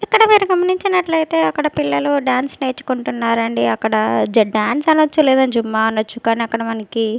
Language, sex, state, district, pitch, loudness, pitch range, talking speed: Telugu, female, Andhra Pradesh, Sri Satya Sai, 255 Hz, -16 LUFS, 225-310 Hz, 135 wpm